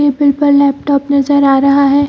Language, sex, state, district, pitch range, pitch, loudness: Hindi, female, Bihar, Jamui, 280-285 Hz, 280 Hz, -11 LUFS